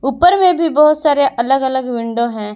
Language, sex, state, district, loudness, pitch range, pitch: Hindi, female, Jharkhand, Garhwa, -14 LUFS, 235-305 Hz, 270 Hz